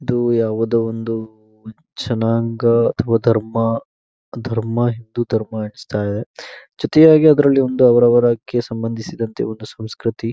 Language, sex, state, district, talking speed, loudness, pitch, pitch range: Kannada, male, Karnataka, Dakshina Kannada, 110 wpm, -17 LUFS, 115 Hz, 110-120 Hz